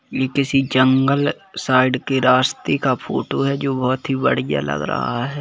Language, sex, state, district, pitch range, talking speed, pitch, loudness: Hindi, male, Chhattisgarh, Kabirdham, 130-140 Hz, 175 wpm, 130 Hz, -19 LUFS